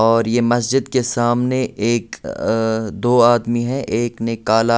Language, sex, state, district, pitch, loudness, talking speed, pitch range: Hindi, male, Delhi, New Delhi, 120 Hz, -18 LUFS, 150 wpm, 115-120 Hz